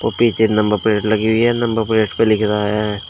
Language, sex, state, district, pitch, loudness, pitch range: Hindi, male, Uttar Pradesh, Shamli, 110 Hz, -16 LUFS, 105-115 Hz